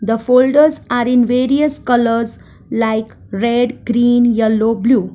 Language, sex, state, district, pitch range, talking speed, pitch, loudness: English, female, Gujarat, Valsad, 225-250 Hz, 130 wpm, 240 Hz, -14 LUFS